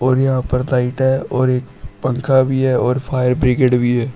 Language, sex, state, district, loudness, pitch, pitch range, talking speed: Hindi, male, Uttar Pradesh, Shamli, -16 LUFS, 130 Hz, 125-130 Hz, 215 wpm